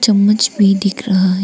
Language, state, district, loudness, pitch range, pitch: Hindi, Arunachal Pradesh, Papum Pare, -13 LUFS, 195-210 Hz, 200 Hz